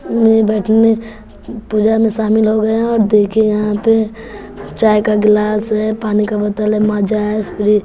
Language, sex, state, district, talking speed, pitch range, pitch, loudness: Hindi, female, Bihar, West Champaran, 170 wpm, 210-220 Hz, 215 Hz, -14 LUFS